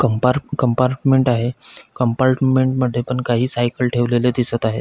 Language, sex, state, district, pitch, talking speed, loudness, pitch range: Marathi, male, Maharashtra, Pune, 125 Hz, 135 wpm, -18 LUFS, 120-130 Hz